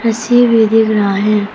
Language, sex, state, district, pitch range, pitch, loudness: Hindi, female, Arunachal Pradesh, Papum Pare, 210-230 Hz, 220 Hz, -11 LUFS